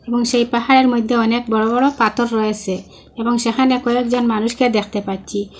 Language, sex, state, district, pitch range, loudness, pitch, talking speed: Bengali, female, Assam, Hailakandi, 220-245 Hz, -17 LUFS, 235 Hz, 160 wpm